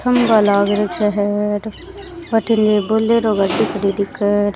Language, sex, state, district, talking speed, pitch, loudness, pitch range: Rajasthani, female, Rajasthan, Churu, 145 wpm, 210 Hz, -16 LUFS, 205-225 Hz